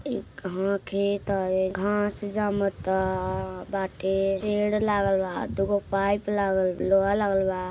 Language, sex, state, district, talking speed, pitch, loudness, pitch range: Hindi, female, Uttar Pradesh, Gorakhpur, 140 wpm, 195 Hz, -26 LUFS, 190-205 Hz